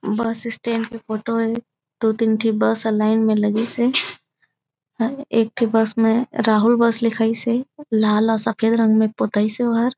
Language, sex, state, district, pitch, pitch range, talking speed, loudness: Chhattisgarhi, female, Chhattisgarh, Raigarh, 225 Hz, 220-230 Hz, 175 wpm, -19 LUFS